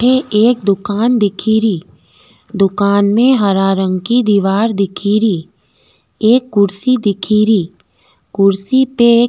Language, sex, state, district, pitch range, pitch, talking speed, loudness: Rajasthani, female, Rajasthan, Nagaur, 195-235 Hz, 205 Hz, 115 wpm, -13 LUFS